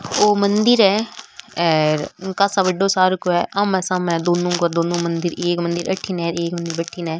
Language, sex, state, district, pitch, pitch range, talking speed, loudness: Rajasthani, female, Rajasthan, Nagaur, 175 Hz, 170-190 Hz, 150 wpm, -19 LUFS